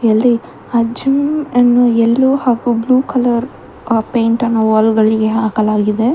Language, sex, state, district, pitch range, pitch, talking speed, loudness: Kannada, female, Karnataka, Bangalore, 220-245 Hz, 235 Hz, 125 wpm, -13 LUFS